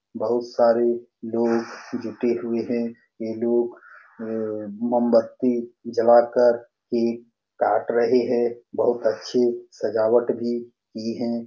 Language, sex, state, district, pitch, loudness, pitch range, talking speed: Hindi, male, Bihar, Saran, 120 Hz, -23 LUFS, 115-120 Hz, 110 wpm